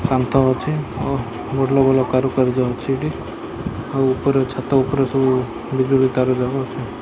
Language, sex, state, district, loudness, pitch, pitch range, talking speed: Odia, male, Odisha, Malkangiri, -19 LUFS, 130 Hz, 130-135 Hz, 145 wpm